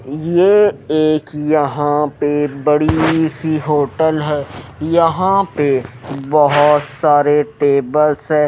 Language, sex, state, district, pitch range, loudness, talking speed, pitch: Hindi, male, Odisha, Nuapada, 145-155 Hz, -15 LUFS, 100 wpm, 150 Hz